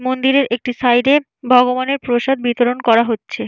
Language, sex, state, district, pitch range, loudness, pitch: Bengali, female, West Bengal, Jalpaiguri, 240-265 Hz, -15 LUFS, 250 Hz